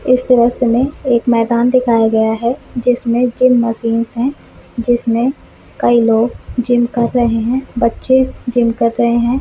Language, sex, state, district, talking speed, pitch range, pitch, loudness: Hindi, female, Chhattisgarh, Balrampur, 140 wpm, 230-250 Hz, 240 Hz, -14 LUFS